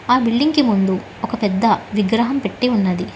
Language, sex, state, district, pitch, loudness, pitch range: Telugu, female, Telangana, Hyderabad, 230 Hz, -18 LUFS, 205-250 Hz